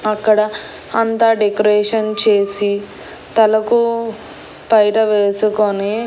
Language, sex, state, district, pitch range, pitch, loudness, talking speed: Telugu, female, Andhra Pradesh, Annamaya, 210-220 Hz, 215 Hz, -15 LUFS, 70 wpm